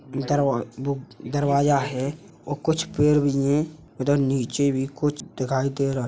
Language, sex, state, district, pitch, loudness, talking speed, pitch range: Hindi, male, Uttar Pradesh, Hamirpur, 140 Hz, -24 LUFS, 180 wpm, 135-145 Hz